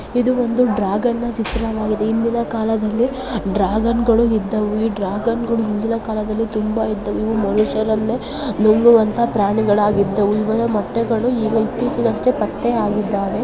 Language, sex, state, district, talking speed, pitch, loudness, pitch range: Kannada, female, Karnataka, Gulbarga, 105 wpm, 225 Hz, -18 LUFS, 210-235 Hz